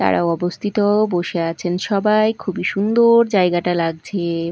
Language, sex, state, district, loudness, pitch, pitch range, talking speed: Bengali, female, Odisha, Malkangiri, -18 LUFS, 185 Hz, 170-210 Hz, 120 wpm